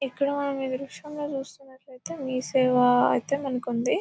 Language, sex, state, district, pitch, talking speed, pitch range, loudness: Telugu, female, Telangana, Nalgonda, 270 Hz, 135 wpm, 255-280 Hz, -26 LUFS